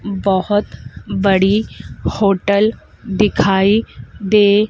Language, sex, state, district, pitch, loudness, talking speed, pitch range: Hindi, female, Madhya Pradesh, Dhar, 200 Hz, -15 LUFS, 65 wpm, 195-210 Hz